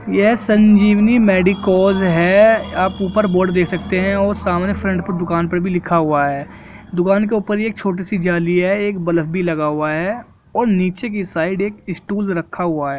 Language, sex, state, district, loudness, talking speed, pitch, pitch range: Hindi, male, Jharkhand, Jamtara, -16 LUFS, 200 wpm, 190 Hz, 175-205 Hz